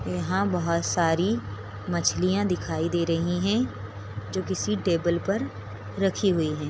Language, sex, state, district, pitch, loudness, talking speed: Hindi, female, Bihar, Begusarai, 160 Hz, -26 LUFS, 135 wpm